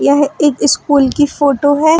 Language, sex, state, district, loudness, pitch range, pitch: Hindi, female, Chhattisgarh, Bilaspur, -12 LUFS, 280-295 Hz, 290 Hz